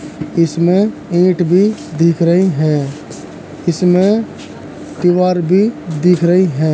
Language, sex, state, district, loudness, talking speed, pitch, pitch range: Hindi, male, Uttar Pradesh, Jalaun, -13 LUFS, 105 wpm, 175 Hz, 170-185 Hz